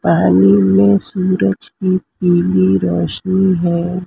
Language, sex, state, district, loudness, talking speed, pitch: Hindi, female, Maharashtra, Mumbai Suburban, -14 LUFS, 105 wpm, 170 Hz